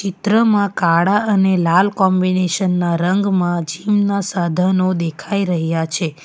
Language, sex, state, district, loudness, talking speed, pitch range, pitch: Gujarati, female, Gujarat, Valsad, -16 LUFS, 135 wpm, 175-200 Hz, 185 Hz